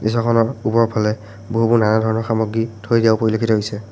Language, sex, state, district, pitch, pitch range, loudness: Assamese, male, Assam, Sonitpur, 110 Hz, 110-115 Hz, -18 LUFS